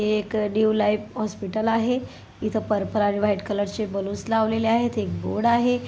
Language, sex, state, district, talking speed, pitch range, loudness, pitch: Marathi, female, Maharashtra, Solapur, 185 wpm, 210-225 Hz, -24 LUFS, 215 Hz